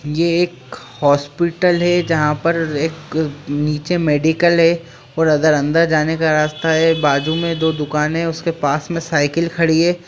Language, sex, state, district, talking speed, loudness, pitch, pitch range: Hindi, male, Bihar, Jamui, 165 wpm, -17 LUFS, 160 Hz, 150-170 Hz